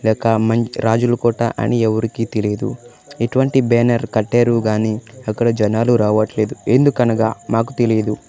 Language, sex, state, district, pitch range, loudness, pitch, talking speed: Telugu, male, Andhra Pradesh, Manyam, 110-120 Hz, -17 LUFS, 115 Hz, 115 wpm